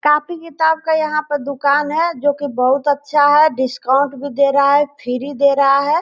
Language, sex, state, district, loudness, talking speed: Hindi, female, Bihar, Purnia, -16 LUFS, 210 wpm